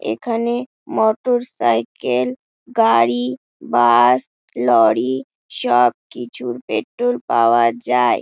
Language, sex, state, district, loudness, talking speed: Bengali, female, West Bengal, Dakshin Dinajpur, -18 LUFS, 65 wpm